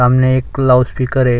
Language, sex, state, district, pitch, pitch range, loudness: Hindi, male, Chhattisgarh, Sukma, 130 Hz, 125-130 Hz, -13 LUFS